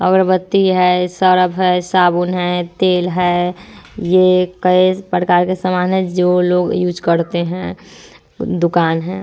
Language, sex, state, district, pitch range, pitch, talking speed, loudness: Hindi, female, Bihar, Vaishali, 180-185 Hz, 180 Hz, 135 wpm, -15 LUFS